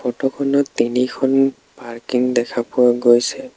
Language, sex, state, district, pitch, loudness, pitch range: Assamese, male, Assam, Sonitpur, 125 Hz, -17 LUFS, 120-135 Hz